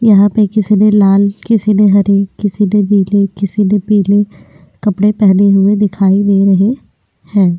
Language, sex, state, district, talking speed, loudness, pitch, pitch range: Hindi, female, Uttar Pradesh, Hamirpur, 165 wpm, -11 LUFS, 205 Hz, 195-210 Hz